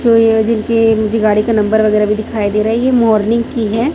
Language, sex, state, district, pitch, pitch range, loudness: Hindi, female, Chhattisgarh, Raipur, 220 Hz, 215-230 Hz, -13 LUFS